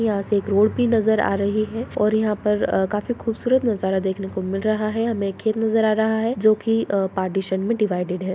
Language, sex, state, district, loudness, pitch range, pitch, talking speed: Hindi, female, Bihar, Lakhisarai, -21 LUFS, 195-225 Hz, 215 Hz, 230 wpm